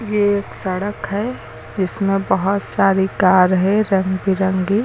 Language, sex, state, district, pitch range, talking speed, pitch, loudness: Hindi, female, Uttar Pradesh, Lucknow, 190-205 Hz, 135 wpm, 195 Hz, -18 LUFS